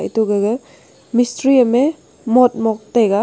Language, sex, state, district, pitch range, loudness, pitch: Wancho, female, Arunachal Pradesh, Longding, 220-250 Hz, -16 LUFS, 235 Hz